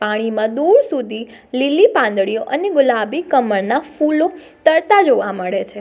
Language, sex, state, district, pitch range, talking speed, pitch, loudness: Gujarati, female, Gujarat, Valsad, 215-320 Hz, 135 wpm, 265 Hz, -16 LUFS